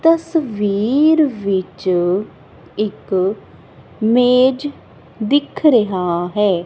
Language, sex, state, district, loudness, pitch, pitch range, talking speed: Punjabi, female, Punjab, Kapurthala, -17 LUFS, 215 Hz, 185-270 Hz, 65 wpm